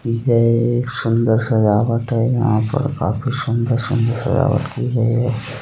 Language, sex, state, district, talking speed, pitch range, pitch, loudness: Bhojpuri, male, Uttar Pradesh, Gorakhpur, 140 wpm, 115-125 Hz, 120 Hz, -18 LUFS